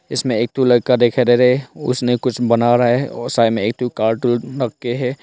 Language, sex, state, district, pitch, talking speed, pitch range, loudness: Hindi, male, Arunachal Pradesh, Longding, 125 Hz, 250 wpm, 120-125 Hz, -17 LUFS